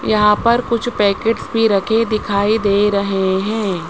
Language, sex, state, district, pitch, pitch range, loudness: Hindi, male, Rajasthan, Jaipur, 210 Hz, 200-225 Hz, -16 LUFS